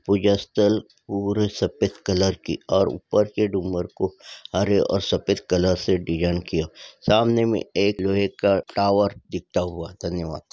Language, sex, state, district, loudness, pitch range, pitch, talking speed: Hindi, male, Uttar Pradesh, Ghazipur, -23 LUFS, 90-105 Hz, 100 Hz, 150 wpm